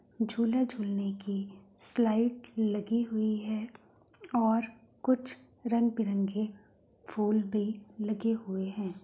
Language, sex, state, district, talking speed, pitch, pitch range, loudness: Hindi, female, Uttar Pradesh, Muzaffarnagar, 95 wpm, 215 Hz, 205-230 Hz, -31 LUFS